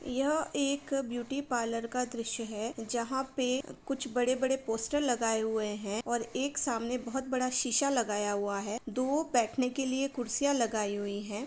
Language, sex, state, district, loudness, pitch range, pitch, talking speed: Hindi, female, Uttar Pradesh, Etah, -32 LUFS, 225-265 Hz, 245 Hz, 165 wpm